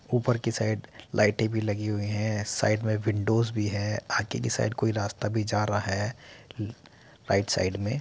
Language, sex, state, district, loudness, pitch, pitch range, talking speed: Hindi, male, Uttar Pradesh, Muzaffarnagar, -28 LUFS, 105 Hz, 105-110 Hz, 195 wpm